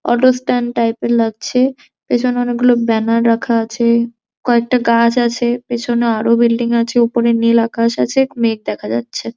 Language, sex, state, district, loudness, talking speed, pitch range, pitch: Bengali, male, West Bengal, Jhargram, -15 LUFS, 155 wpm, 230-240 Hz, 235 Hz